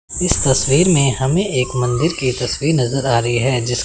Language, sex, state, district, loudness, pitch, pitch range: Hindi, male, Chandigarh, Chandigarh, -16 LUFS, 130 Hz, 125-145 Hz